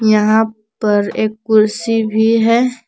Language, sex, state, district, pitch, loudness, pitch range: Hindi, female, Jharkhand, Palamu, 220 Hz, -14 LUFS, 215-225 Hz